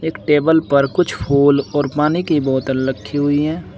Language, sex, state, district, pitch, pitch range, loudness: Hindi, male, Uttar Pradesh, Saharanpur, 145 Hz, 140-155 Hz, -16 LUFS